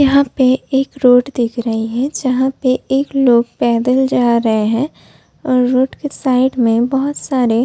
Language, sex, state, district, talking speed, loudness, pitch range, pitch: Hindi, female, Uttar Pradesh, Budaun, 180 wpm, -15 LUFS, 240-270 Hz, 255 Hz